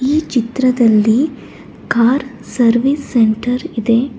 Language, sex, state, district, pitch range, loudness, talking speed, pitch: Kannada, female, Karnataka, Bangalore, 230-265 Hz, -14 LUFS, 85 wpm, 245 Hz